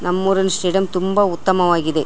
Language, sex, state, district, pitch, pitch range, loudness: Kannada, female, Karnataka, Shimoga, 185 Hz, 175-190 Hz, -17 LUFS